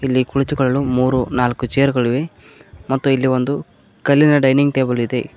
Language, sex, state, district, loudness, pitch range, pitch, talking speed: Kannada, male, Karnataka, Koppal, -17 LUFS, 125-140 Hz, 130 Hz, 135 wpm